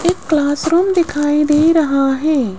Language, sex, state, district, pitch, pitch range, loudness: Hindi, female, Rajasthan, Jaipur, 300 Hz, 290-330 Hz, -14 LUFS